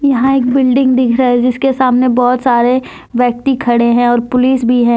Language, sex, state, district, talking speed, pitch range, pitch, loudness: Hindi, female, Jharkhand, Deoghar, 205 wpm, 240-260 Hz, 250 Hz, -12 LUFS